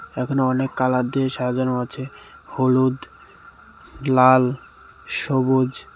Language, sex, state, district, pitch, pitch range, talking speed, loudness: Bengali, male, Tripura, West Tripura, 130 Hz, 130-135 Hz, 100 wpm, -20 LUFS